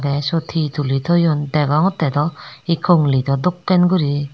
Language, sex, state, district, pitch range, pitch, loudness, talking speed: Chakma, female, Tripura, Dhalai, 145-170 Hz, 155 Hz, -17 LUFS, 150 wpm